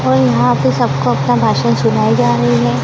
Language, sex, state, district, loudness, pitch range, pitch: Hindi, female, Maharashtra, Gondia, -13 LUFS, 120-130 Hz, 120 Hz